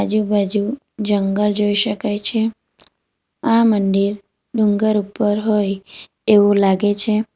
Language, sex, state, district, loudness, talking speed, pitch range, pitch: Gujarati, female, Gujarat, Valsad, -17 LUFS, 105 wpm, 205-215 Hz, 210 Hz